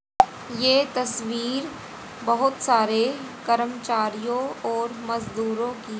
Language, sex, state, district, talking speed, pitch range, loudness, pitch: Hindi, female, Haryana, Jhajjar, 80 wpm, 230-255 Hz, -24 LUFS, 240 Hz